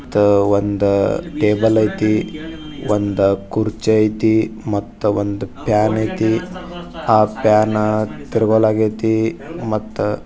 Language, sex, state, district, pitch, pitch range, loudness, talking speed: Kannada, male, Karnataka, Bijapur, 110 Hz, 105-110 Hz, -17 LUFS, 75 wpm